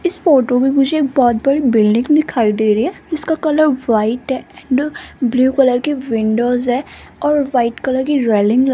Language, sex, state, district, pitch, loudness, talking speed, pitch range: Hindi, female, Rajasthan, Jaipur, 260 Hz, -15 LUFS, 185 wpm, 240-290 Hz